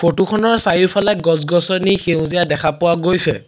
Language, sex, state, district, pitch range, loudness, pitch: Assamese, male, Assam, Sonitpur, 165-190 Hz, -15 LUFS, 175 Hz